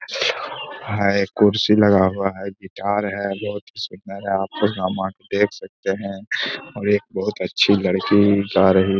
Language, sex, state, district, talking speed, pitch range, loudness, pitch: Hindi, male, Bihar, Gaya, 165 wpm, 95-105 Hz, -20 LUFS, 100 Hz